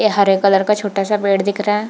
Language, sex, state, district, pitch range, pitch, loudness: Hindi, female, Bihar, Purnia, 195-210 Hz, 200 Hz, -16 LUFS